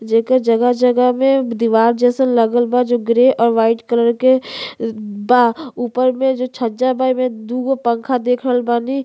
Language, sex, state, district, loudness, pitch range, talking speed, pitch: Bhojpuri, female, Uttar Pradesh, Gorakhpur, -15 LUFS, 235-255 Hz, 165 wpm, 245 Hz